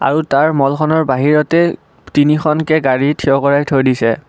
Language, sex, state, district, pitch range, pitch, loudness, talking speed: Assamese, male, Assam, Kamrup Metropolitan, 135-155 Hz, 145 Hz, -13 LUFS, 140 wpm